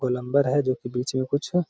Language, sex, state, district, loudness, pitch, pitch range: Hindi, male, Bihar, Gaya, -25 LUFS, 130 Hz, 125-140 Hz